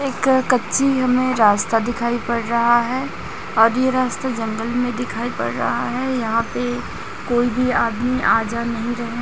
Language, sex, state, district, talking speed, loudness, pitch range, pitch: Hindi, female, Chhattisgarh, Raipur, 170 wpm, -19 LUFS, 230-255 Hz, 240 Hz